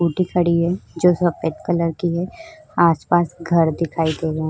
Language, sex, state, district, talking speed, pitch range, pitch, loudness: Hindi, female, Uttar Pradesh, Budaun, 175 wpm, 165-175 Hz, 170 Hz, -19 LUFS